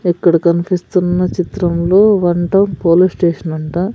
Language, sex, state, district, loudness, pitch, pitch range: Telugu, female, Andhra Pradesh, Sri Satya Sai, -14 LUFS, 175 Hz, 170-185 Hz